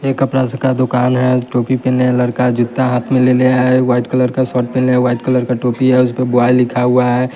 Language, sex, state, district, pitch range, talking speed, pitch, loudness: Hindi, male, Bihar, West Champaran, 125-130 Hz, 245 wpm, 125 Hz, -14 LUFS